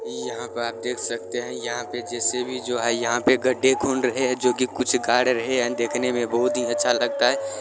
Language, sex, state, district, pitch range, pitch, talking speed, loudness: Hindi, male, Bihar, Saran, 120-125 Hz, 120 Hz, 245 wpm, -23 LUFS